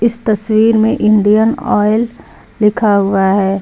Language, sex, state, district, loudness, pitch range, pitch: Hindi, female, Uttar Pradesh, Lucknow, -12 LUFS, 205-225 Hz, 215 Hz